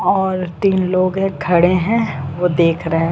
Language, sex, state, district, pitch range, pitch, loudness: Hindi, female, Uttar Pradesh, Jyotiba Phule Nagar, 165-190 Hz, 180 Hz, -16 LUFS